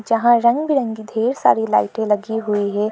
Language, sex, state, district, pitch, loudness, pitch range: Hindi, female, Arunachal Pradesh, Lower Dibang Valley, 220 Hz, -18 LUFS, 210-235 Hz